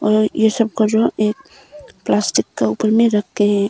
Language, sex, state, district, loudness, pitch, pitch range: Hindi, female, Arunachal Pradesh, Longding, -17 LUFS, 220 Hz, 210-230 Hz